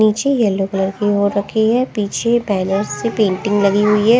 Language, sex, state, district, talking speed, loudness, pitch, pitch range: Hindi, female, Punjab, Kapurthala, 200 wpm, -16 LUFS, 210 Hz, 200-225 Hz